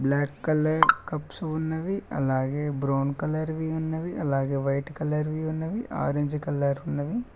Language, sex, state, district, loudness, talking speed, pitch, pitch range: Telugu, male, Telangana, Mahabubabad, -27 LUFS, 145 wpm, 150 Hz, 140-160 Hz